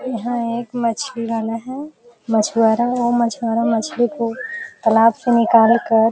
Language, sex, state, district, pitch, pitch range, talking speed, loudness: Hindi, female, Uttar Pradesh, Jalaun, 235 Hz, 225-240 Hz, 145 wpm, -18 LUFS